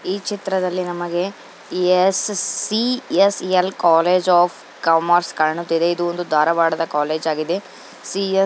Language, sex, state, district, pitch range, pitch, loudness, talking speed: Kannada, female, Karnataka, Dharwad, 165-190 Hz, 175 Hz, -19 LUFS, 115 wpm